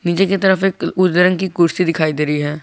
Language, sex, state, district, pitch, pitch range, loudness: Hindi, male, Jharkhand, Garhwa, 180 Hz, 155-190 Hz, -16 LUFS